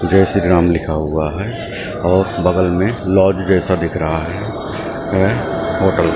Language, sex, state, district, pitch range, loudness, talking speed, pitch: Hindi, male, Maharashtra, Mumbai Suburban, 85-95 Hz, -16 LUFS, 165 wpm, 95 Hz